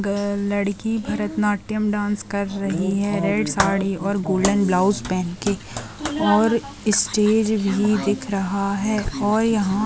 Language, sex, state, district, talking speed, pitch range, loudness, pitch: Hindi, female, Chhattisgarh, Raigarh, 135 wpm, 195-210 Hz, -21 LUFS, 200 Hz